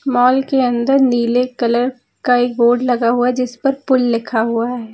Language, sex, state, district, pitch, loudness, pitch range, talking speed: Hindi, female, Uttar Pradesh, Lucknow, 245 Hz, -16 LUFS, 235-255 Hz, 195 wpm